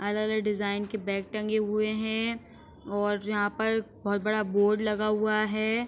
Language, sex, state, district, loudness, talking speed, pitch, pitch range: Hindi, female, Uttar Pradesh, Etah, -28 LUFS, 165 wpm, 215 Hz, 205-215 Hz